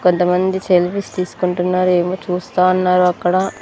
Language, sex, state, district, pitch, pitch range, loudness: Telugu, female, Andhra Pradesh, Sri Satya Sai, 180 Hz, 180-185 Hz, -16 LUFS